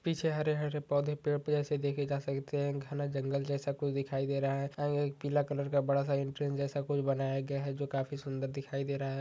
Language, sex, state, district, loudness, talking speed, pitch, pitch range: Hindi, male, Chhattisgarh, Raigarh, -34 LUFS, 235 wpm, 140 Hz, 140-145 Hz